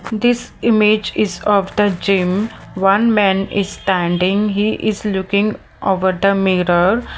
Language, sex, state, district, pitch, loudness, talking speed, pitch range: English, female, Maharashtra, Mumbai Suburban, 200 Hz, -16 LUFS, 135 wpm, 190-215 Hz